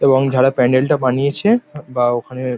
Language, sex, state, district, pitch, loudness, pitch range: Bengali, male, West Bengal, Paschim Medinipur, 130 Hz, -16 LUFS, 125-140 Hz